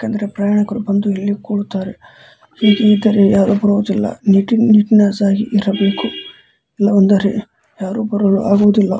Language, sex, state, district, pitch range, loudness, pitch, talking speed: Kannada, male, Karnataka, Dharwad, 200-210 Hz, -14 LUFS, 205 Hz, 100 wpm